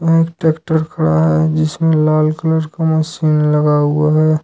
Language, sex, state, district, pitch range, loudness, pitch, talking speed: Hindi, male, Jharkhand, Ranchi, 155-160 Hz, -14 LUFS, 155 Hz, 175 wpm